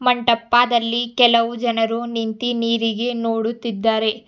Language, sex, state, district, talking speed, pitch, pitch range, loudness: Kannada, female, Karnataka, Bidar, 100 wpm, 230 Hz, 225-240 Hz, -19 LUFS